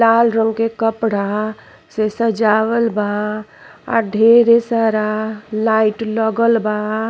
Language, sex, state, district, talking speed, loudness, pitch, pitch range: Bhojpuri, female, Uttar Pradesh, Ghazipur, 110 wpm, -16 LUFS, 220 Hz, 215-230 Hz